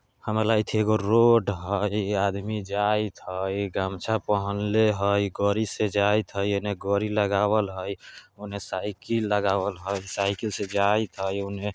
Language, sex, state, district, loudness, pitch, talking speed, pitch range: Bajjika, male, Bihar, Vaishali, -25 LUFS, 100 Hz, 155 wpm, 100-105 Hz